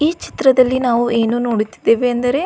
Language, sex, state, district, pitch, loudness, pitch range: Kannada, female, Karnataka, Belgaum, 245 Hz, -16 LUFS, 235-260 Hz